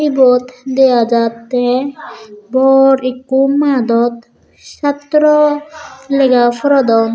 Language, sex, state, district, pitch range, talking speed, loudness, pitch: Chakma, female, Tripura, Dhalai, 240-280 Hz, 75 wpm, -12 LUFS, 265 Hz